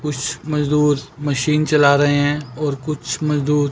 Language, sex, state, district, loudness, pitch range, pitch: Hindi, male, Chandigarh, Chandigarh, -18 LUFS, 145-150 Hz, 145 Hz